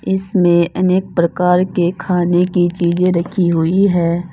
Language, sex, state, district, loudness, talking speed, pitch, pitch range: Hindi, female, Uttar Pradesh, Saharanpur, -15 LUFS, 140 wpm, 175 Hz, 170-185 Hz